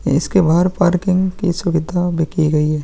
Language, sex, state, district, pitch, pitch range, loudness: Hindi, male, Bihar, Vaishali, 175 Hz, 155-180 Hz, -16 LUFS